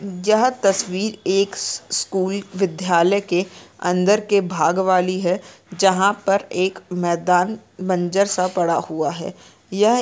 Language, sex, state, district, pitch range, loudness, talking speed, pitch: Hindi, female, Chhattisgarh, Sarguja, 180-200 Hz, -20 LUFS, 125 wpm, 190 Hz